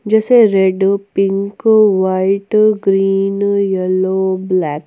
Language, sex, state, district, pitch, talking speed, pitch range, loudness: Hindi, female, Jharkhand, Ranchi, 195 Hz, 100 wpm, 190-205 Hz, -13 LUFS